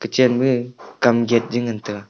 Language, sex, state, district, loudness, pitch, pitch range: Wancho, male, Arunachal Pradesh, Longding, -19 LUFS, 120 Hz, 115-125 Hz